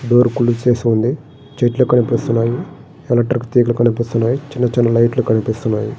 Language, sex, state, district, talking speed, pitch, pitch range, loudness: Telugu, male, Andhra Pradesh, Srikakulam, 150 wpm, 120 Hz, 115-125 Hz, -16 LUFS